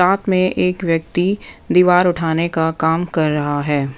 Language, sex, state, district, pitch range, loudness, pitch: Hindi, female, Punjab, Pathankot, 160-180 Hz, -17 LUFS, 165 Hz